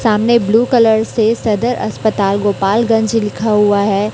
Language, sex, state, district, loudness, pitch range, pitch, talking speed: Hindi, female, Chhattisgarh, Raipur, -13 LUFS, 205-230 Hz, 220 Hz, 145 wpm